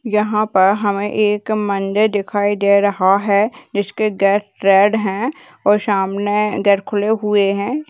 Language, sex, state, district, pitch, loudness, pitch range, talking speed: Hindi, female, Rajasthan, Churu, 205 Hz, -16 LUFS, 200-215 Hz, 135 wpm